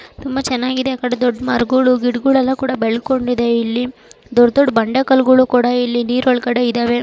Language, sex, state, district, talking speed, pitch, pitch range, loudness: Kannada, female, Karnataka, Dharwad, 160 wpm, 250 Hz, 240-260 Hz, -15 LUFS